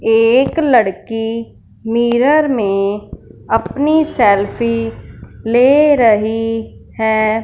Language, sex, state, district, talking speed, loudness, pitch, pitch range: Hindi, female, Punjab, Fazilka, 70 wpm, -14 LUFS, 225 Hz, 205-250 Hz